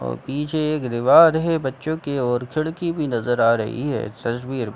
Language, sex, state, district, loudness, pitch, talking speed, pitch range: Hindi, male, Jharkhand, Sahebganj, -21 LUFS, 135 Hz, 215 wpm, 120-155 Hz